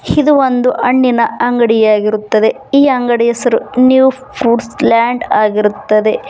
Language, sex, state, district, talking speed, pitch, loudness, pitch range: Kannada, female, Karnataka, Bangalore, 105 wpm, 240 Hz, -12 LUFS, 215-255 Hz